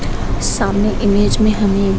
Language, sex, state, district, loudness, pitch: Hindi, female, Bihar, Gaya, -16 LUFS, 200 Hz